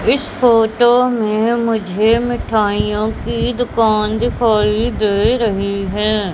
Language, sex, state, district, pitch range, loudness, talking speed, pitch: Hindi, female, Madhya Pradesh, Katni, 210-235 Hz, -15 LUFS, 105 wpm, 220 Hz